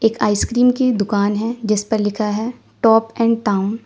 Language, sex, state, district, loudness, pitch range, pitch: Hindi, female, Uttar Pradesh, Lalitpur, -17 LUFS, 210-230 Hz, 220 Hz